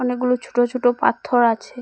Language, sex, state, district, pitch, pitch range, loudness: Bengali, female, Assam, Hailakandi, 245 Hz, 245-250 Hz, -19 LUFS